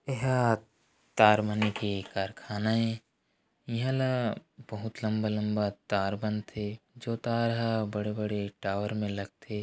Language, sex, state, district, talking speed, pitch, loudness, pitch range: Chhattisgarhi, male, Chhattisgarh, Korba, 120 wpm, 110 Hz, -30 LUFS, 105-115 Hz